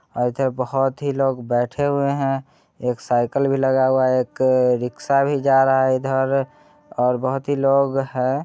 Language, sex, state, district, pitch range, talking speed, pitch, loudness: Hindi, male, Bihar, Muzaffarpur, 130-140 Hz, 200 wpm, 135 Hz, -20 LUFS